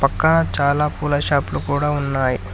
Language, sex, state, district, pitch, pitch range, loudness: Telugu, male, Telangana, Hyderabad, 140 Hz, 140-150 Hz, -19 LUFS